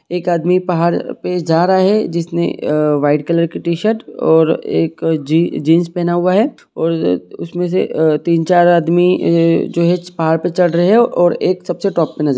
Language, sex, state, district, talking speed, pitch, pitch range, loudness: Hindi, male, Jharkhand, Sahebganj, 195 wpm, 170 Hz, 160-180 Hz, -14 LUFS